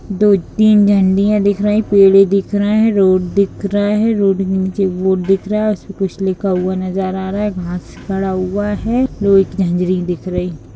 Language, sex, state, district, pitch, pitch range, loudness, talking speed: Hindi, female, Jharkhand, Jamtara, 195 Hz, 185-205 Hz, -15 LUFS, 210 wpm